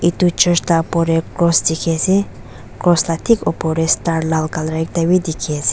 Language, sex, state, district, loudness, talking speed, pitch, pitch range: Nagamese, female, Nagaland, Dimapur, -16 LUFS, 200 wpm, 165 Hz, 160-175 Hz